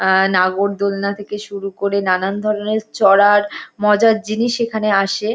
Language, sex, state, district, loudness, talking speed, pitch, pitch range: Bengali, female, West Bengal, North 24 Parganas, -16 LUFS, 135 wpm, 205 Hz, 195-215 Hz